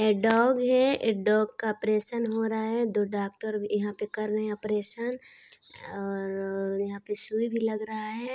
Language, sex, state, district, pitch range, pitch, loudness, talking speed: Hindi, female, Chhattisgarh, Sarguja, 210-225 Hz, 215 Hz, -28 LUFS, 195 wpm